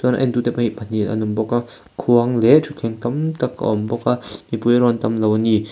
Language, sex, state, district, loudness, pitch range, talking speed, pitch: Mizo, male, Mizoram, Aizawl, -19 LUFS, 110-125 Hz, 250 wpm, 120 Hz